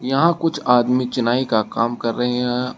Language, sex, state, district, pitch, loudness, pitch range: Hindi, male, Uttar Pradesh, Shamli, 125 Hz, -19 LUFS, 120-130 Hz